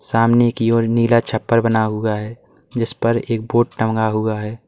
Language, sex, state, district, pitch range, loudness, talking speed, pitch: Hindi, male, Uttar Pradesh, Lalitpur, 110-115 Hz, -18 LUFS, 190 wpm, 115 Hz